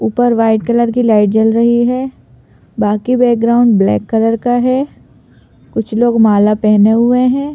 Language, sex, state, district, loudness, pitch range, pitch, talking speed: Hindi, female, Madhya Pradesh, Bhopal, -12 LUFS, 215-245 Hz, 230 Hz, 160 wpm